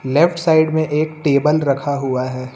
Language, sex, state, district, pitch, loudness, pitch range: Hindi, male, Uttar Pradesh, Lucknow, 145 Hz, -17 LUFS, 135-155 Hz